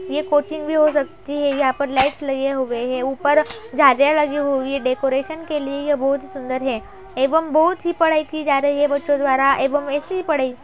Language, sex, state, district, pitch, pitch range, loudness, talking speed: Hindi, female, Uttar Pradesh, Budaun, 285 Hz, 270-305 Hz, -19 LUFS, 215 wpm